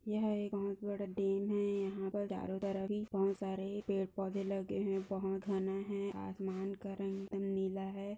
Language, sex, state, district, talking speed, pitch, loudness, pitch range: Hindi, female, Maharashtra, Solapur, 175 wpm, 195 Hz, -39 LUFS, 195-200 Hz